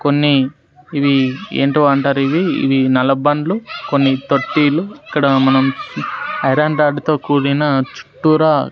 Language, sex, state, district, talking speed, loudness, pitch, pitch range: Telugu, male, Andhra Pradesh, Sri Satya Sai, 95 wpm, -15 LUFS, 140 Hz, 135-150 Hz